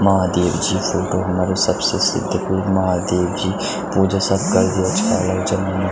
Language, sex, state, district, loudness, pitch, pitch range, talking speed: Garhwali, male, Uttarakhand, Tehri Garhwal, -18 LUFS, 95 Hz, 90-95 Hz, 170 wpm